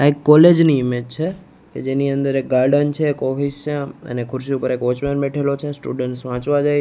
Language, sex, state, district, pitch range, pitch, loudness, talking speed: Gujarati, male, Gujarat, Gandhinagar, 130-145 Hz, 140 Hz, -18 LUFS, 220 wpm